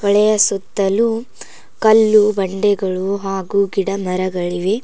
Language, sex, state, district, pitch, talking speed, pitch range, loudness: Kannada, female, Karnataka, Koppal, 200 Hz, 85 wpm, 190-210 Hz, -16 LUFS